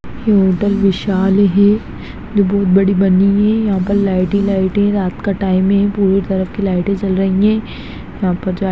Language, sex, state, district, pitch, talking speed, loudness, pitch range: Hindi, female, Bihar, Gaya, 195 Hz, 215 wpm, -14 LUFS, 190-200 Hz